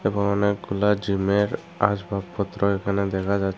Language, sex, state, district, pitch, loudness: Bengali, male, Tripura, Unakoti, 100 Hz, -24 LUFS